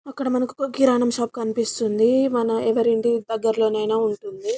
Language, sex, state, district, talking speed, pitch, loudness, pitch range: Telugu, female, Telangana, Karimnagar, 130 wpm, 235 Hz, -21 LUFS, 225-255 Hz